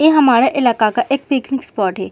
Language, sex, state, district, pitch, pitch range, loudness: Hindi, female, Uttar Pradesh, Muzaffarnagar, 255 Hz, 230-275 Hz, -15 LUFS